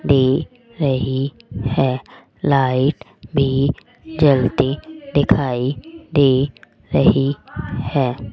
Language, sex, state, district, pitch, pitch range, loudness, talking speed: Hindi, female, Rajasthan, Jaipur, 135 Hz, 130-145 Hz, -19 LUFS, 70 wpm